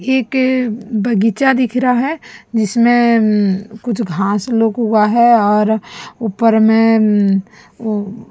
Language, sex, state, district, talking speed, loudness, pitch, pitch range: Hindi, female, Chhattisgarh, Raipur, 125 wpm, -14 LUFS, 225 Hz, 215-240 Hz